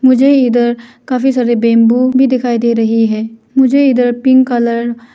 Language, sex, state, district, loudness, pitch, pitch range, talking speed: Hindi, female, Arunachal Pradesh, Lower Dibang Valley, -11 LUFS, 245 Hz, 235-260 Hz, 175 wpm